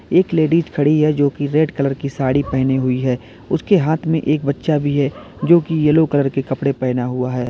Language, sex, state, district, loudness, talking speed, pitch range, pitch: Hindi, male, Uttar Pradesh, Lalitpur, -17 LUFS, 230 wpm, 130-155 Hz, 145 Hz